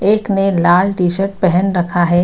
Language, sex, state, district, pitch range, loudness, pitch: Hindi, female, Bihar, Gaya, 175-195 Hz, -14 LUFS, 185 Hz